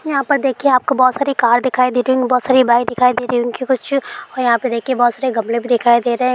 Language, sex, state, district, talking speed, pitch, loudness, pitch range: Hindi, female, Bihar, Araria, 290 wpm, 250 Hz, -15 LUFS, 240-260 Hz